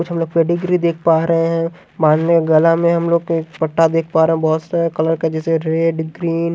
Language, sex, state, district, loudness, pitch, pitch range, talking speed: Hindi, male, Haryana, Jhajjar, -16 LUFS, 165 Hz, 160-170 Hz, 245 wpm